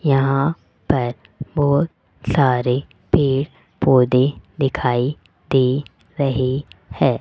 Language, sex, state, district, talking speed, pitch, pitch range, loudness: Hindi, female, Rajasthan, Jaipur, 85 wpm, 135 Hz, 125-140 Hz, -19 LUFS